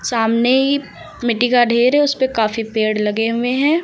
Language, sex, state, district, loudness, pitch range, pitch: Hindi, female, Uttar Pradesh, Lucknow, -16 LUFS, 225-265 Hz, 240 Hz